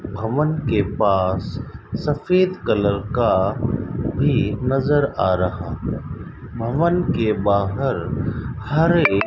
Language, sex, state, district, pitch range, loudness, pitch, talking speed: Hindi, male, Rajasthan, Bikaner, 100-145 Hz, -20 LUFS, 120 Hz, 95 wpm